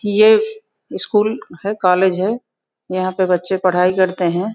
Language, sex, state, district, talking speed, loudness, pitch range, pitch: Hindi, female, Uttar Pradesh, Gorakhpur, 145 wpm, -17 LUFS, 185-215 Hz, 190 Hz